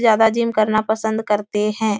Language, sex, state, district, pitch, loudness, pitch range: Hindi, female, Uttar Pradesh, Etah, 220 Hz, -18 LUFS, 215-220 Hz